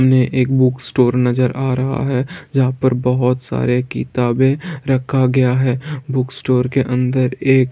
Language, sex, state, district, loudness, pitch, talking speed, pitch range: Hindi, male, Bihar, Saran, -17 LUFS, 130 Hz, 180 wpm, 125-135 Hz